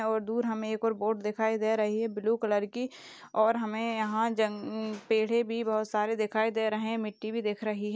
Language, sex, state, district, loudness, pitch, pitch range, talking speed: Hindi, female, Maharashtra, Aurangabad, -30 LUFS, 220 Hz, 215-225 Hz, 225 wpm